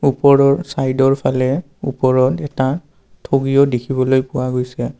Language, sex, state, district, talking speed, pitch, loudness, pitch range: Assamese, male, Assam, Kamrup Metropolitan, 110 wpm, 135 Hz, -16 LUFS, 130-140 Hz